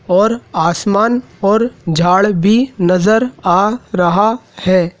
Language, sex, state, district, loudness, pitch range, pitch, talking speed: Hindi, male, Madhya Pradesh, Dhar, -13 LUFS, 180-220 Hz, 200 Hz, 110 wpm